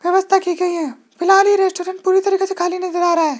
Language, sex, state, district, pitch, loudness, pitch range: Hindi, male, Rajasthan, Jaipur, 360 Hz, -17 LUFS, 350-385 Hz